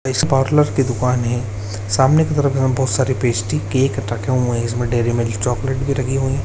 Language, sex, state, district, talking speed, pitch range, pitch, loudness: Hindi, male, Uttarakhand, Uttarkashi, 225 wpm, 120-135 Hz, 130 Hz, -18 LUFS